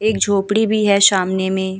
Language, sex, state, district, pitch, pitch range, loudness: Hindi, female, Bihar, Vaishali, 200 Hz, 190-210 Hz, -15 LUFS